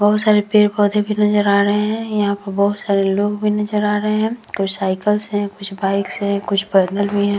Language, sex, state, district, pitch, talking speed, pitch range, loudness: Hindi, female, Bihar, Vaishali, 205 Hz, 210 wpm, 200-210 Hz, -17 LUFS